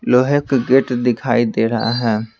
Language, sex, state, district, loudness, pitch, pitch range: Hindi, male, Bihar, Patna, -16 LUFS, 120 Hz, 115-130 Hz